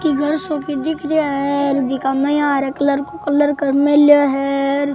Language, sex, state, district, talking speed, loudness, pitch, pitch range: Rajasthani, male, Rajasthan, Churu, 220 wpm, -16 LUFS, 285 Hz, 275-295 Hz